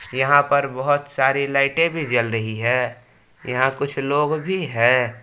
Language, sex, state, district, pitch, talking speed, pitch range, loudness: Hindi, male, Jharkhand, Palamu, 135 Hz, 160 wpm, 125-145 Hz, -20 LUFS